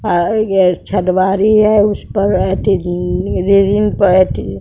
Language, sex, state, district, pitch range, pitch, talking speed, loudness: Hindi, female, Bihar, West Champaran, 180-205 Hz, 195 Hz, 90 wpm, -13 LUFS